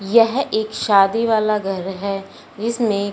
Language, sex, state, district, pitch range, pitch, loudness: Hindi, male, Punjab, Fazilka, 195-230 Hz, 215 Hz, -19 LUFS